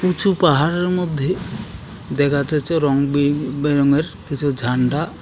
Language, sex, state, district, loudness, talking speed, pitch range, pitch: Bengali, male, West Bengal, Alipurduar, -19 LUFS, 115 wpm, 140-170 Hz, 145 Hz